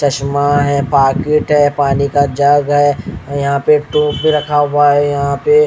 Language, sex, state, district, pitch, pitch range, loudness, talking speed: Hindi, male, Haryana, Rohtak, 145 Hz, 140-150 Hz, -13 LUFS, 180 wpm